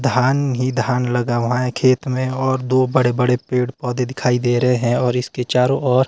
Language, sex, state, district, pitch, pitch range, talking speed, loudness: Hindi, male, Himachal Pradesh, Shimla, 125 Hz, 125-130 Hz, 215 wpm, -18 LUFS